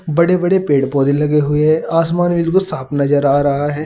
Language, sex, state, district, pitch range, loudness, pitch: Hindi, male, Uttar Pradesh, Saharanpur, 145-170 Hz, -15 LUFS, 150 Hz